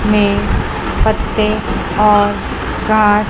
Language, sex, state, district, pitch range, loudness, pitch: Hindi, male, Chandigarh, Chandigarh, 210-215 Hz, -15 LUFS, 210 Hz